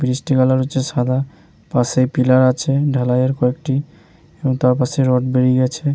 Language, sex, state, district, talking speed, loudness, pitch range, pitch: Bengali, male, West Bengal, Jalpaiguri, 180 wpm, -17 LUFS, 125-135 Hz, 130 Hz